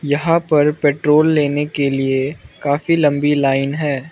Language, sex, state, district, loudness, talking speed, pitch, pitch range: Hindi, male, Arunachal Pradesh, Lower Dibang Valley, -16 LUFS, 145 wpm, 145 Hz, 140-150 Hz